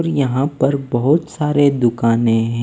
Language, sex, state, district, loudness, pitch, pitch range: Hindi, male, Maharashtra, Mumbai Suburban, -16 LUFS, 135 Hz, 120-145 Hz